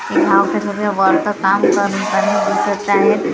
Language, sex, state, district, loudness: Marathi, female, Maharashtra, Gondia, -15 LUFS